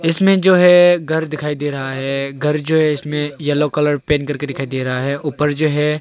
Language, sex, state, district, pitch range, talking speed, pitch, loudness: Hindi, male, Arunachal Pradesh, Longding, 145-155 Hz, 230 wpm, 150 Hz, -16 LUFS